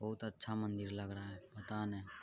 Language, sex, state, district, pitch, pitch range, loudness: Hindi, male, Bihar, Araria, 105 Hz, 100-105 Hz, -44 LUFS